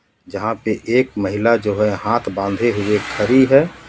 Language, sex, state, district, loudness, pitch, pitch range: Hindi, male, Jharkhand, Ranchi, -17 LUFS, 105 Hz, 100-130 Hz